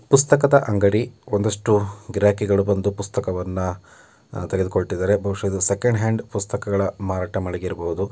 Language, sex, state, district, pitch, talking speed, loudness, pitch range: Kannada, male, Karnataka, Mysore, 100 Hz, 110 wpm, -21 LUFS, 95-105 Hz